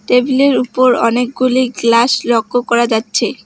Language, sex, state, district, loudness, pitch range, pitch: Bengali, female, West Bengal, Alipurduar, -13 LUFS, 235-255 Hz, 245 Hz